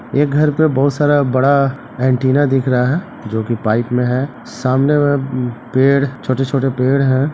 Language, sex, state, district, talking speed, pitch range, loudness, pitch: Hindi, male, Bihar, Begusarai, 180 wpm, 125-140 Hz, -15 LUFS, 135 Hz